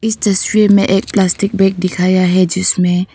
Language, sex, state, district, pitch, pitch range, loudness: Hindi, female, Arunachal Pradesh, Papum Pare, 190 Hz, 185-200 Hz, -13 LUFS